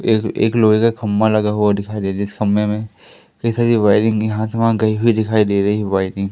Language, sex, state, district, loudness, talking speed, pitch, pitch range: Hindi, male, Madhya Pradesh, Katni, -16 LUFS, 255 wpm, 110 Hz, 105-110 Hz